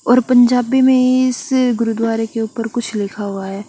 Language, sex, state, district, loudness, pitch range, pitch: Hindi, female, Chandigarh, Chandigarh, -16 LUFS, 225-255 Hz, 240 Hz